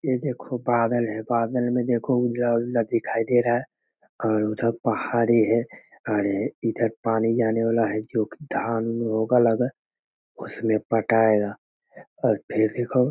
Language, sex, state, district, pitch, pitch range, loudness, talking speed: Hindi, male, Bihar, Jamui, 115 Hz, 110-120 Hz, -24 LUFS, 150 wpm